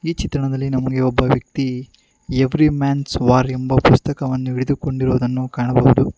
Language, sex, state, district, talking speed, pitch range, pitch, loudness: Kannada, male, Karnataka, Bangalore, 105 wpm, 130-140 Hz, 130 Hz, -18 LUFS